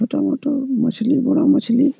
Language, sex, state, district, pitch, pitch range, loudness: Bengali, male, West Bengal, Malda, 275 Hz, 245-285 Hz, -18 LUFS